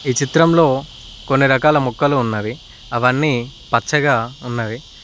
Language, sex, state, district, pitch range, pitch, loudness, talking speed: Telugu, male, Telangana, Mahabubabad, 120-145 Hz, 130 Hz, -17 LUFS, 120 wpm